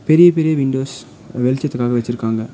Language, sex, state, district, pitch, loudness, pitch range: Tamil, male, Tamil Nadu, Nilgiris, 130 Hz, -16 LUFS, 120-150 Hz